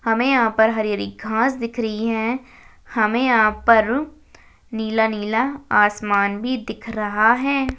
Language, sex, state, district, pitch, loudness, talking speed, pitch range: Hindi, female, Chhattisgarh, Jashpur, 225 Hz, -19 LUFS, 145 wpm, 215-250 Hz